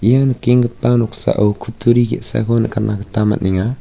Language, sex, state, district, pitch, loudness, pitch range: Garo, male, Meghalaya, West Garo Hills, 115 Hz, -16 LUFS, 105-120 Hz